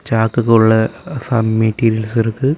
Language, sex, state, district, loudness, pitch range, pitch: Tamil, male, Tamil Nadu, Kanyakumari, -15 LUFS, 110-120 Hz, 115 Hz